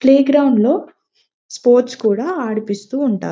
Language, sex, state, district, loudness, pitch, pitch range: Telugu, female, Telangana, Nalgonda, -16 LUFS, 255 Hz, 220-275 Hz